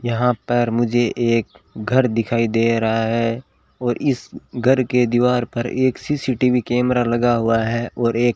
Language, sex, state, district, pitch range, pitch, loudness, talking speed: Hindi, male, Rajasthan, Bikaner, 115-125 Hz, 120 Hz, -19 LUFS, 165 wpm